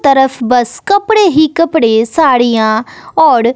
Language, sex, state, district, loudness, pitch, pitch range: Hindi, female, Bihar, West Champaran, -10 LUFS, 265 Hz, 235-335 Hz